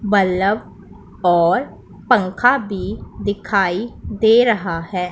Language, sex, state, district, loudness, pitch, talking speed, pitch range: Hindi, female, Punjab, Pathankot, -18 LUFS, 200 Hz, 95 wpm, 185-220 Hz